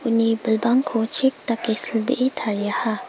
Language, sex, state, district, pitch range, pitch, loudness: Garo, female, Meghalaya, West Garo Hills, 225-255 Hz, 230 Hz, -20 LUFS